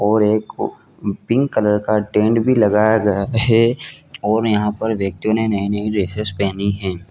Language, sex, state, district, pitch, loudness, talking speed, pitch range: Hindi, male, Chhattisgarh, Bilaspur, 105 Hz, -18 LUFS, 150 wpm, 100-110 Hz